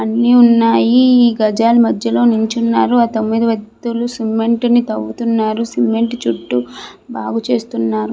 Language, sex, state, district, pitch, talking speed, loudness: Telugu, female, Andhra Pradesh, Visakhapatnam, 225 Hz, 105 wpm, -14 LUFS